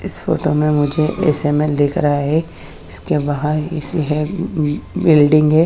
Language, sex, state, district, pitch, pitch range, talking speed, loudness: Hindi, female, Haryana, Charkhi Dadri, 150 Hz, 150-160 Hz, 180 wpm, -16 LUFS